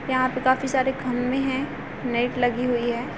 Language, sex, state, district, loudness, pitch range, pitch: Hindi, female, Bihar, Sitamarhi, -24 LUFS, 245-260 Hz, 255 Hz